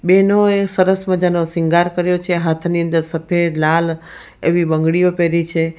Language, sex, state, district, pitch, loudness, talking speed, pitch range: Gujarati, female, Gujarat, Valsad, 170 Hz, -16 LUFS, 155 wpm, 165-180 Hz